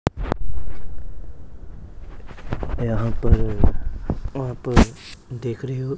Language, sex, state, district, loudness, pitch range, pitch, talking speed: Hindi, male, Punjab, Pathankot, -24 LUFS, 85-120 Hz, 95 Hz, 70 wpm